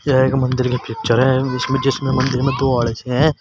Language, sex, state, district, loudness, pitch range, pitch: Hindi, male, Uttar Pradesh, Shamli, -18 LUFS, 125-135 Hz, 130 Hz